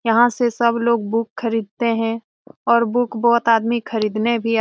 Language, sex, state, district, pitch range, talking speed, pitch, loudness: Hindi, female, Bihar, Jamui, 225-235 Hz, 180 wpm, 230 Hz, -19 LUFS